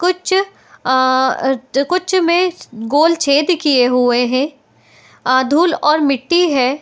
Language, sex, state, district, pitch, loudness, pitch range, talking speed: Hindi, female, Uttar Pradesh, Etah, 285 Hz, -15 LUFS, 260-350 Hz, 140 wpm